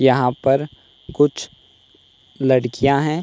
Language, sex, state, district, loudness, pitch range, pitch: Hindi, male, Uttar Pradesh, Hamirpur, -18 LUFS, 125-145 Hz, 135 Hz